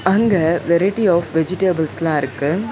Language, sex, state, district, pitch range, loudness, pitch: Tamil, female, Tamil Nadu, Chennai, 160-190 Hz, -17 LUFS, 170 Hz